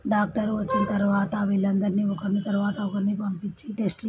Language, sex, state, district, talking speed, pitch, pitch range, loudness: Telugu, female, Andhra Pradesh, Srikakulam, 130 wpm, 205 Hz, 200-210 Hz, -25 LUFS